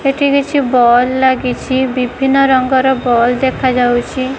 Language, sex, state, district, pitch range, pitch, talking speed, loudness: Odia, female, Odisha, Khordha, 250-265 Hz, 260 Hz, 125 wpm, -13 LUFS